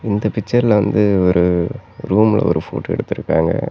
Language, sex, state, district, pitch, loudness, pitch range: Tamil, male, Tamil Nadu, Namakkal, 105 Hz, -16 LUFS, 95-110 Hz